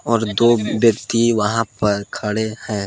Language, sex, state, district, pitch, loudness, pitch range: Hindi, male, Jharkhand, Palamu, 110 Hz, -18 LUFS, 105-115 Hz